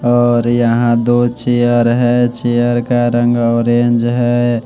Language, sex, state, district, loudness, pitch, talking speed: Hindi, male, Bihar, West Champaran, -13 LUFS, 120 Hz, 130 wpm